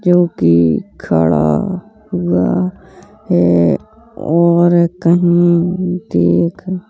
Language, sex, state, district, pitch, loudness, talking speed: Hindi, female, Uttar Pradesh, Hamirpur, 170 Hz, -14 LUFS, 70 wpm